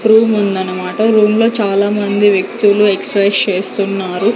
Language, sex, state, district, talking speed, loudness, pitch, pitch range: Telugu, female, Andhra Pradesh, Sri Satya Sai, 110 wpm, -12 LUFS, 205 Hz, 195-215 Hz